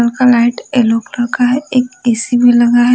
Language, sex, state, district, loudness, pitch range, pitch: Hindi, female, Maharashtra, Gondia, -12 LUFS, 240-250 Hz, 245 Hz